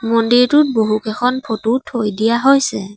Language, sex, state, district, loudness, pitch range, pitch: Assamese, female, Assam, Sonitpur, -15 LUFS, 220-255 Hz, 230 Hz